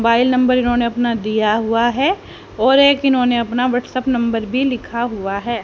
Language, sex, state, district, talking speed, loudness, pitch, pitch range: Hindi, female, Haryana, Charkhi Dadri, 180 wpm, -16 LUFS, 240 Hz, 230-255 Hz